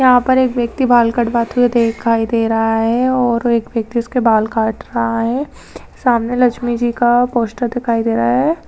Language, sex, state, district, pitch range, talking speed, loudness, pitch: Hindi, female, Bihar, Jahanabad, 230-245 Hz, 195 wpm, -15 LUFS, 235 Hz